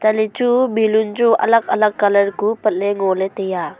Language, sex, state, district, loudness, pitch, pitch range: Wancho, female, Arunachal Pradesh, Longding, -16 LUFS, 215 Hz, 200-225 Hz